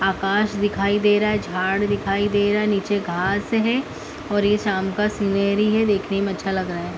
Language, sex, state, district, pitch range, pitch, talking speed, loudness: Hindi, female, Uttar Pradesh, Muzaffarnagar, 195-210 Hz, 205 Hz, 215 wpm, -21 LUFS